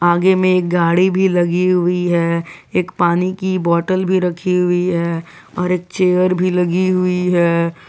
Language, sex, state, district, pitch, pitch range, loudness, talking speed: Hindi, male, Jharkhand, Garhwa, 180 Hz, 175-185 Hz, -16 LUFS, 175 wpm